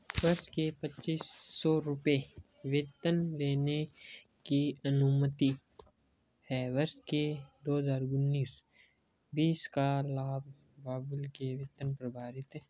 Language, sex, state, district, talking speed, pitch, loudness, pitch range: Hindi, male, Rajasthan, Churu, 110 wpm, 140 Hz, -34 LUFS, 135-150 Hz